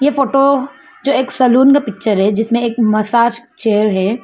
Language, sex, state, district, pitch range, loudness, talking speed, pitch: Hindi, female, Arunachal Pradesh, Papum Pare, 215-270 Hz, -13 LUFS, 170 wpm, 235 Hz